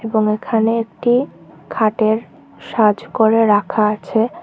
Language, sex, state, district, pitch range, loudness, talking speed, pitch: Bengali, female, Tripura, Unakoti, 215-230 Hz, -17 LUFS, 110 wpm, 220 Hz